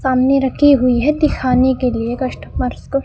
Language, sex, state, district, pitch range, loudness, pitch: Hindi, female, Rajasthan, Bikaner, 255-275 Hz, -15 LUFS, 260 Hz